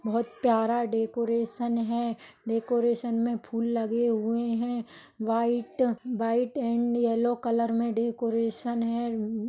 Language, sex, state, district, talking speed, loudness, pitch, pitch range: Hindi, female, Maharashtra, Solapur, 115 wpm, -28 LUFS, 235 Hz, 230-235 Hz